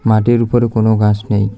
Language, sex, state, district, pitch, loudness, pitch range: Bengali, male, Tripura, South Tripura, 110 Hz, -13 LUFS, 105-120 Hz